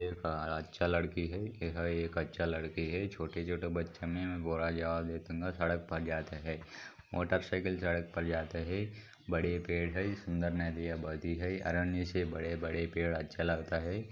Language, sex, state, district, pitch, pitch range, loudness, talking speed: Hindi, male, Maharashtra, Sindhudurg, 85 Hz, 80-90 Hz, -37 LUFS, 155 wpm